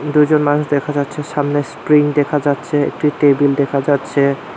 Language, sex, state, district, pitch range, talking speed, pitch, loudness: Bengali, male, Tripura, Unakoti, 140-150 Hz, 155 wpm, 145 Hz, -16 LUFS